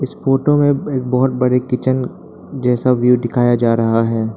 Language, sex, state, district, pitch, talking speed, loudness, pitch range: Hindi, male, Arunachal Pradesh, Lower Dibang Valley, 125 Hz, 165 wpm, -16 LUFS, 115-130 Hz